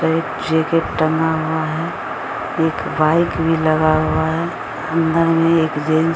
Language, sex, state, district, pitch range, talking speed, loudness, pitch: Hindi, female, Bihar, Samastipur, 155-165 Hz, 155 wpm, -18 LUFS, 160 Hz